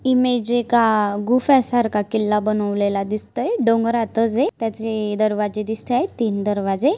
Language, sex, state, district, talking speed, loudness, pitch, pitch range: Marathi, female, Maharashtra, Dhule, 130 wpm, -20 LUFS, 225 Hz, 210-240 Hz